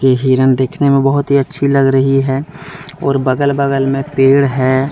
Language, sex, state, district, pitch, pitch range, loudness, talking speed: Hindi, male, Jharkhand, Deoghar, 135 Hz, 135-140 Hz, -13 LUFS, 170 wpm